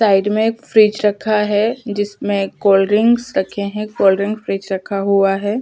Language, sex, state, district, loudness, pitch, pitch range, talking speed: Hindi, female, Chhattisgarh, Sukma, -16 LUFS, 205 Hz, 195-215 Hz, 180 wpm